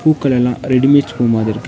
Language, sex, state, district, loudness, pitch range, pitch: Tamil, male, Tamil Nadu, Nilgiris, -14 LUFS, 115-140 Hz, 125 Hz